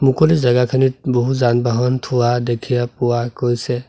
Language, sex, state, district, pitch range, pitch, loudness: Assamese, male, Assam, Sonitpur, 120-130 Hz, 125 Hz, -17 LUFS